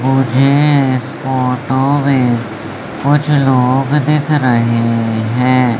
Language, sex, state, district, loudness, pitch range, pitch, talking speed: Hindi, male, Madhya Pradesh, Umaria, -13 LUFS, 125-140 Hz, 130 Hz, 95 wpm